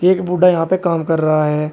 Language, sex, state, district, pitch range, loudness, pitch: Hindi, male, Uttar Pradesh, Shamli, 155-180 Hz, -15 LUFS, 165 Hz